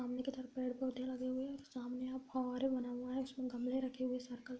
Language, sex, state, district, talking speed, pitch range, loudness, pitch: Hindi, female, Bihar, Bhagalpur, 220 wpm, 250-260 Hz, -42 LUFS, 255 Hz